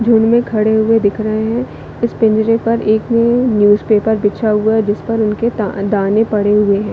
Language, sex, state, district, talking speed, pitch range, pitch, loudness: Hindi, female, Chhattisgarh, Bilaspur, 190 wpm, 210-230 Hz, 220 Hz, -14 LUFS